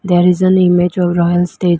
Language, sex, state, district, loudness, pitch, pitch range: English, female, Arunachal Pradesh, Lower Dibang Valley, -12 LUFS, 175 Hz, 175-180 Hz